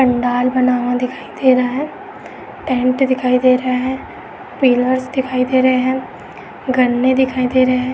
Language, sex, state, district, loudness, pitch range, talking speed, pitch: Hindi, female, Uttar Pradesh, Etah, -16 LUFS, 250-260 Hz, 165 wpm, 255 Hz